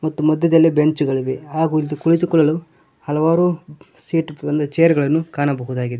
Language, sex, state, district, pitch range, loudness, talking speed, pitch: Kannada, male, Karnataka, Koppal, 145-165 Hz, -18 LUFS, 120 wpm, 155 Hz